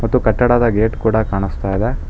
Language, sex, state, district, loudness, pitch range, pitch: Kannada, male, Karnataka, Bangalore, -16 LUFS, 100-120 Hz, 110 Hz